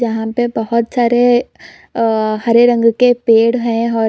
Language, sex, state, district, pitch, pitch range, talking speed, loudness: Hindi, female, Chhattisgarh, Bilaspur, 235 Hz, 225-240 Hz, 160 wpm, -13 LUFS